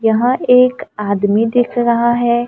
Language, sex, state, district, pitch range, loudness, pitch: Hindi, female, Maharashtra, Gondia, 225-245 Hz, -14 LUFS, 235 Hz